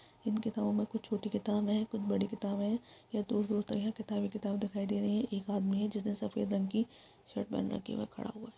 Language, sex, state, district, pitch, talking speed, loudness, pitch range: Hindi, female, Chhattisgarh, Sukma, 210 Hz, 260 wpm, -36 LUFS, 205-220 Hz